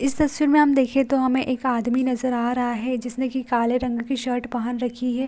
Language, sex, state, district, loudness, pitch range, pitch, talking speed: Hindi, female, Bihar, Vaishali, -22 LUFS, 245-265 Hz, 255 Hz, 250 wpm